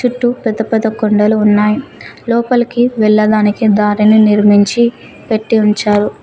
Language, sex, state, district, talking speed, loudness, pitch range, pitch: Telugu, female, Telangana, Mahabubabad, 105 wpm, -12 LUFS, 210-235 Hz, 215 Hz